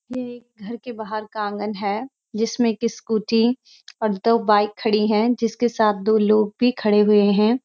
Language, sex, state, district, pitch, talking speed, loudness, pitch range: Hindi, female, Uttarakhand, Uttarkashi, 220 Hz, 190 wpm, -20 LUFS, 210-235 Hz